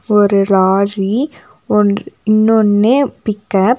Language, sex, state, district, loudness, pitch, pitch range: Tamil, female, Tamil Nadu, Nilgiris, -13 LUFS, 210 Hz, 200-225 Hz